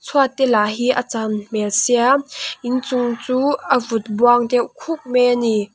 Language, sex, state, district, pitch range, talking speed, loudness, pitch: Mizo, female, Mizoram, Aizawl, 225-255 Hz, 190 wpm, -18 LUFS, 245 Hz